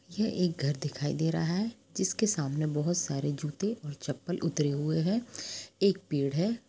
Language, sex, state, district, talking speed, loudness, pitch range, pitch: Hindi, female, Jharkhand, Jamtara, 180 wpm, -31 LUFS, 145-195 Hz, 165 Hz